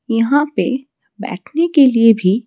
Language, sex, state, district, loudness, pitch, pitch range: Hindi, female, Odisha, Malkangiri, -14 LUFS, 260 Hz, 230-290 Hz